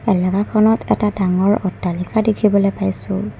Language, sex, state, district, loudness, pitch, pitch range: Assamese, female, Assam, Kamrup Metropolitan, -17 LUFS, 195 Hz, 180-210 Hz